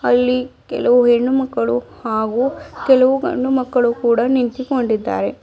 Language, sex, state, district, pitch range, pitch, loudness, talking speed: Kannada, female, Karnataka, Bidar, 235-260 Hz, 250 Hz, -17 LUFS, 100 wpm